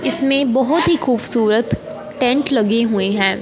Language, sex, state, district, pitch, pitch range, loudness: Hindi, female, Punjab, Fazilka, 245 Hz, 215-275 Hz, -16 LUFS